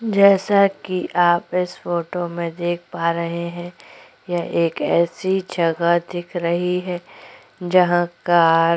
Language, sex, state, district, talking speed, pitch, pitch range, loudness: Hindi, female, Chhattisgarh, Korba, 135 wpm, 175 Hz, 170-180 Hz, -20 LUFS